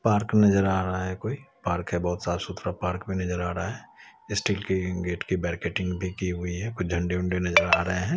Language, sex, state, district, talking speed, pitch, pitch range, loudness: Hindi, male, Chhattisgarh, Raipur, 235 wpm, 90 Hz, 90-95 Hz, -27 LUFS